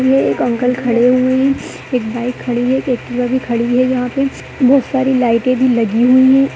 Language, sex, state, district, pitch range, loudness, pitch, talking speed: Hindi, female, Bihar, Begusarai, 245-260 Hz, -14 LUFS, 250 Hz, 220 wpm